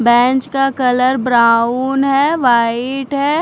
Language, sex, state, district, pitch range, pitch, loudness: Hindi, female, Punjab, Fazilka, 240-270 Hz, 255 Hz, -14 LUFS